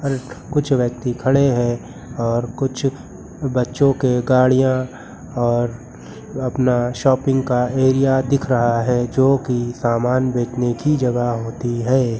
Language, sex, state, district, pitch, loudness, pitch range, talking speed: Hindi, male, Uttar Pradesh, Lucknow, 125 Hz, -19 LUFS, 120-130 Hz, 125 wpm